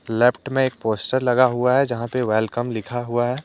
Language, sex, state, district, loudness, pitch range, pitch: Hindi, male, Jharkhand, Deoghar, -21 LUFS, 115-130 Hz, 120 Hz